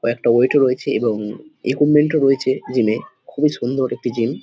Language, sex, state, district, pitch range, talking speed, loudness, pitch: Bengali, male, West Bengal, Dakshin Dinajpur, 120-145 Hz, 205 wpm, -18 LUFS, 130 Hz